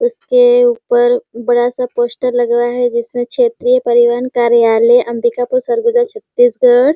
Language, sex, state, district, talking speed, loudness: Hindi, female, Chhattisgarh, Sarguja, 130 wpm, -13 LUFS